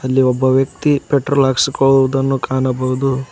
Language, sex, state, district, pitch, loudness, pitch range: Kannada, male, Karnataka, Koppal, 135 Hz, -15 LUFS, 130-135 Hz